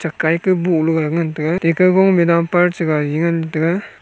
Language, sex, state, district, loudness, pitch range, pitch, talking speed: Wancho, male, Arunachal Pradesh, Longding, -16 LUFS, 160-180 Hz, 165 Hz, 195 wpm